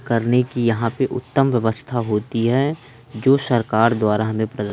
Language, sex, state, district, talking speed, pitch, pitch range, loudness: Hindi, male, Madhya Pradesh, Umaria, 150 wpm, 120 Hz, 110-125 Hz, -19 LUFS